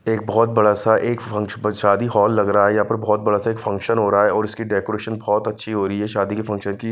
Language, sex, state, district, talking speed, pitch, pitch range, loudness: Hindi, male, Punjab, Fazilka, 295 wpm, 105 Hz, 105-110 Hz, -19 LUFS